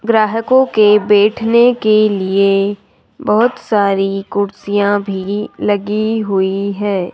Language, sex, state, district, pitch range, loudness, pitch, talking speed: Hindi, male, Rajasthan, Jaipur, 200-220 Hz, -14 LUFS, 205 Hz, 100 wpm